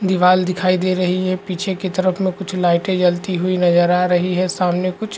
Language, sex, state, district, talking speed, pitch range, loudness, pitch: Hindi, male, Chhattisgarh, Raigarh, 230 wpm, 180-185 Hz, -17 LUFS, 185 Hz